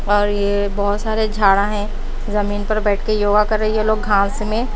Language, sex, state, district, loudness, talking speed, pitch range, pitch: Hindi, female, Haryana, Rohtak, -18 LUFS, 215 wpm, 205-215 Hz, 210 Hz